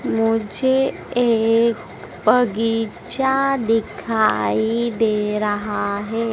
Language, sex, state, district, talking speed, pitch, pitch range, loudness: Hindi, female, Madhya Pradesh, Dhar, 65 wpm, 225 Hz, 215-235 Hz, -19 LUFS